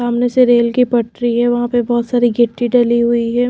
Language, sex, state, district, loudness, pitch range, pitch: Hindi, female, Himachal Pradesh, Shimla, -14 LUFS, 235-245 Hz, 240 Hz